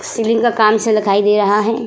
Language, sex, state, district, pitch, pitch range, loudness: Hindi, female, Uttar Pradesh, Budaun, 215 Hz, 210-230 Hz, -14 LUFS